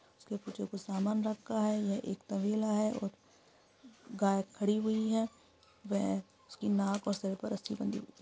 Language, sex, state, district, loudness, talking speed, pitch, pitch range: Hindi, female, Bihar, Supaul, -35 LUFS, 185 wpm, 210 Hz, 200-220 Hz